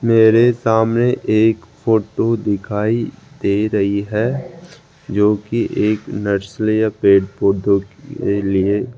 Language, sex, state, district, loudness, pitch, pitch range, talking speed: Hindi, male, Rajasthan, Jaipur, -17 LUFS, 110 Hz, 100-115 Hz, 120 wpm